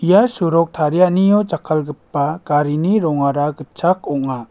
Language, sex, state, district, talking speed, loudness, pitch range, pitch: Garo, male, Meghalaya, West Garo Hills, 105 wpm, -17 LUFS, 145-180 Hz, 155 Hz